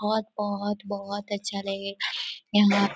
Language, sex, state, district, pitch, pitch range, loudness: Hindi, female, Chhattisgarh, Korba, 205 Hz, 200-205 Hz, -28 LUFS